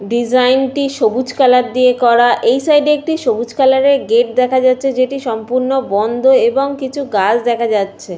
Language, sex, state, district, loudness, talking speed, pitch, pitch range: Bengali, female, West Bengal, Paschim Medinipur, -13 LUFS, 160 wpm, 255 Hz, 235-270 Hz